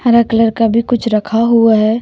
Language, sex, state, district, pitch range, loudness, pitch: Hindi, female, Jharkhand, Deoghar, 220-235 Hz, -12 LUFS, 230 Hz